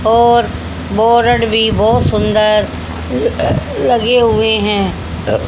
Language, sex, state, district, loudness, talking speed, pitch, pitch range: Hindi, female, Haryana, Charkhi Dadri, -13 LUFS, 100 wpm, 220 Hz, 210-235 Hz